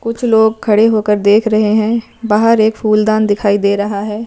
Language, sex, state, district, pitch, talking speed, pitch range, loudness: Hindi, female, Himachal Pradesh, Shimla, 215 Hz, 195 wpm, 210-225 Hz, -12 LUFS